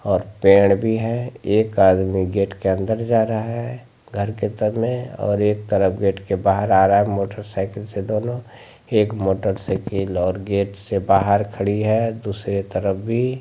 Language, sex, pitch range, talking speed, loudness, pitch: Maithili, male, 95-110 Hz, 175 wpm, -20 LUFS, 100 Hz